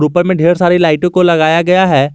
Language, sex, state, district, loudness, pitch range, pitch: Hindi, male, Jharkhand, Garhwa, -10 LUFS, 160-180 Hz, 175 Hz